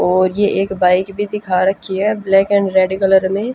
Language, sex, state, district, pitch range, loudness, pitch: Hindi, female, Haryana, Jhajjar, 190-205 Hz, -15 LUFS, 195 Hz